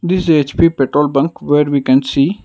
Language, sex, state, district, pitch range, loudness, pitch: English, male, Karnataka, Bangalore, 140-165 Hz, -13 LUFS, 145 Hz